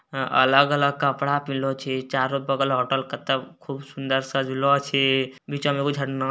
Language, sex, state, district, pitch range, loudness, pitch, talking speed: Maithili, male, Bihar, Bhagalpur, 135-140 Hz, -23 LUFS, 135 Hz, 150 wpm